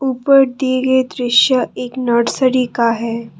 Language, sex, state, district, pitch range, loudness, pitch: Hindi, female, Assam, Kamrup Metropolitan, 235-260 Hz, -15 LUFS, 255 Hz